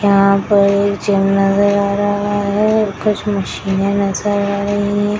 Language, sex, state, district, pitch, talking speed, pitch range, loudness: Hindi, female, Bihar, Madhepura, 200 Hz, 175 wpm, 200-205 Hz, -15 LUFS